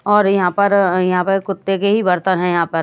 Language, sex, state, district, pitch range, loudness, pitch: Hindi, female, Haryana, Jhajjar, 180-200 Hz, -16 LUFS, 190 Hz